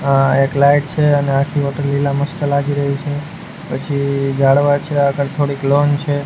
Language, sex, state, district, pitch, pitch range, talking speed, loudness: Gujarati, male, Gujarat, Gandhinagar, 140 Hz, 140-145 Hz, 180 wpm, -16 LUFS